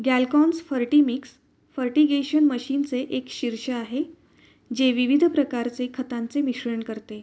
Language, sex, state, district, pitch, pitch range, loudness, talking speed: Marathi, female, Maharashtra, Pune, 255 Hz, 240-285 Hz, -24 LUFS, 125 wpm